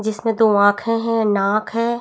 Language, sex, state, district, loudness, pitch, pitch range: Hindi, female, Chhattisgarh, Bastar, -18 LUFS, 220 Hz, 210-230 Hz